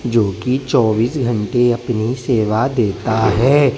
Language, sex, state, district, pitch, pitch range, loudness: Hindi, male, Bihar, West Champaran, 120 Hz, 110-130 Hz, -16 LUFS